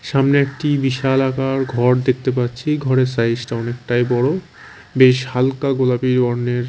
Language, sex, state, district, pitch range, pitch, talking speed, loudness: Bengali, male, Chhattisgarh, Raipur, 125-135 Hz, 130 Hz, 135 wpm, -17 LUFS